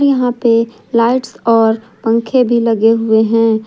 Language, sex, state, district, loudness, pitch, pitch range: Hindi, female, Jharkhand, Ranchi, -13 LUFS, 230 Hz, 225-235 Hz